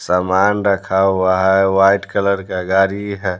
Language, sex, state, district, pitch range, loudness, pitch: Hindi, male, Bihar, Patna, 95-100 Hz, -15 LUFS, 95 Hz